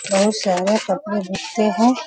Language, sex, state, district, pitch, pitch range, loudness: Hindi, female, Bihar, Sitamarhi, 205 Hz, 195-220 Hz, -19 LUFS